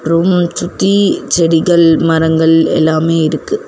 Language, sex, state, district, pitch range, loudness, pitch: Tamil, female, Tamil Nadu, Chennai, 160-175 Hz, -11 LUFS, 165 Hz